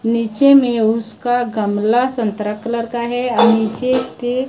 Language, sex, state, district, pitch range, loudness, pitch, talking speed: Hindi, male, Chhattisgarh, Raipur, 225-245 Hz, -16 LUFS, 235 Hz, 145 wpm